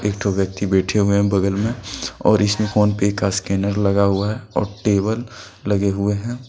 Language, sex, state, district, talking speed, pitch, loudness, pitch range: Hindi, male, Jharkhand, Deoghar, 205 wpm, 100 Hz, -19 LUFS, 100-105 Hz